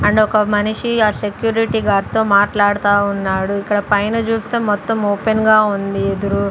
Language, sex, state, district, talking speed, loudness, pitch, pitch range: Telugu, female, Andhra Pradesh, Sri Satya Sai, 150 wpm, -16 LUFS, 205 Hz, 200-220 Hz